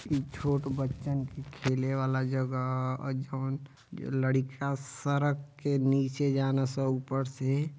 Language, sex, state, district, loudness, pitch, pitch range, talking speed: Bhojpuri, male, Uttar Pradesh, Deoria, -31 LUFS, 135 Hz, 130-140 Hz, 125 wpm